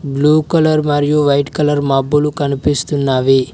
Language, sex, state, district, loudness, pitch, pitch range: Telugu, male, Telangana, Mahabubabad, -14 LUFS, 145 Hz, 140-150 Hz